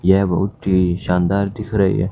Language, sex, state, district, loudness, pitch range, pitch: Hindi, male, Haryana, Charkhi Dadri, -18 LUFS, 90-100 Hz, 95 Hz